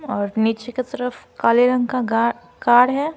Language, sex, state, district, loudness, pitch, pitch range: Hindi, female, Bihar, Patna, -19 LUFS, 245 Hz, 230-255 Hz